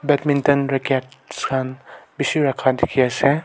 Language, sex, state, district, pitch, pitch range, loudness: Nagamese, male, Nagaland, Kohima, 135 Hz, 130-145 Hz, -20 LUFS